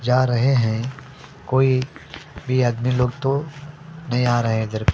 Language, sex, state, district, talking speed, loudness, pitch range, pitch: Hindi, male, Delhi, New Delhi, 170 wpm, -21 LUFS, 120-135 Hz, 130 Hz